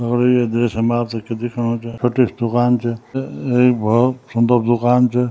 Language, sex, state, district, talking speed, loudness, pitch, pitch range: Garhwali, male, Uttarakhand, Tehri Garhwal, 190 wpm, -17 LUFS, 120 Hz, 115-125 Hz